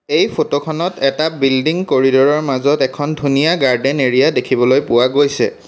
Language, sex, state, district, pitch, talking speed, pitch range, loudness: Assamese, male, Assam, Kamrup Metropolitan, 140 Hz, 160 wpm, 135-150 Hz, -14 LUFS